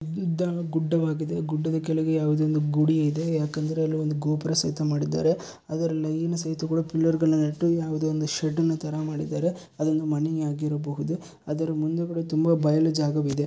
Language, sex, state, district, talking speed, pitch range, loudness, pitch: Kannada, male, Karnataka, Bellary, 145 wpm, 155-160 Hz, -26 LUFS, 155 Hz